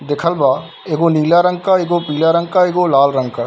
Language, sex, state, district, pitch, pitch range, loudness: Hindi, male, Bihar, Darbhanga, 165 Hz, 140-175 Hz, -14 LUFS